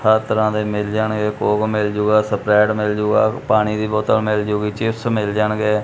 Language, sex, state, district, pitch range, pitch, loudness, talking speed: Punjabi, male, Punjab, Kapurthala, 105-110 Hz, 105 Hz, -18 LUFS, 195 wpm